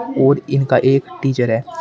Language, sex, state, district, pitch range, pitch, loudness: Hindi, male, Uttar Pradesh, Shamli, 130-135 Hz, 135 Hz, -16 LUFS